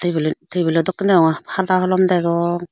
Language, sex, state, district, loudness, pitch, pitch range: Chakma, female, Tripura, Unakoti, -18 LUFS, 175 Hz, 165-185 Hz